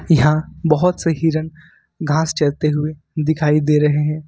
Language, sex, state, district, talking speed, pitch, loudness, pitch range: Hindi, male, Jharkhand, Ranchi, 155 wpm, 155 Hz, -18 LUFS, 150-160 Hz